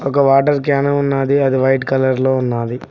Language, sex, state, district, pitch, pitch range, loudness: Telugu, male, Telangana, Mahabubabad, 135 Hz, 130-140 Hz, -15 LUFS